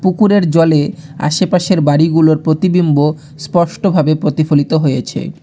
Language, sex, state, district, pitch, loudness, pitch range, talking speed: Bengali, male, West Bengal, Alipurduar, 160 Hz, -13 LUFS, 150-180 Hz, 90 wpm